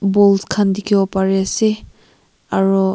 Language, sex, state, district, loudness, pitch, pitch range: Nagamese, female, Nagaland, Kohima, -16 LUFS, 195 Hz, 195-205 Hz